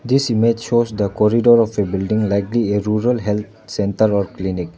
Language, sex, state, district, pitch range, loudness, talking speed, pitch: English, male, Arunachal Pradesh, Lower Dibang Valley, 100-115 Hz, -18 LUFS, 190 wpm, 105 Hz